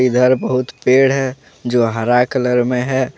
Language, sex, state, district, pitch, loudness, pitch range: Hindi, male, Jharkhand, Deoghar, 125 Hz, -15 LUFS, 125-130 Hz